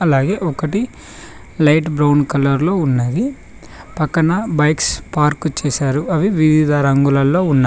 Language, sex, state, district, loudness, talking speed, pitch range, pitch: Telugu, male, Telangana, Mahabubabad, -16 LUFS, 115 wpm, 140-165 Hz, 150 Hz